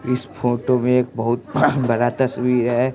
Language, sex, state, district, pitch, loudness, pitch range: Hindi, male, Bihar, West Champaran, 125 Hz, -19 LUFS, 120-130 Hz